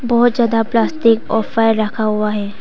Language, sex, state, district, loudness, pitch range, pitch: Hindi, female, Arunachal Pradesh, Papum Pare, -15 LUFS, 215-235 Hz, 225 Hz